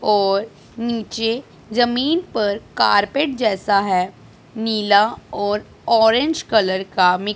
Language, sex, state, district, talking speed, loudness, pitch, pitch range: Hindi, female, Punjab, Pathankot, 100 wpm, -19 LUFS, 215 Hz, 205-235 Hz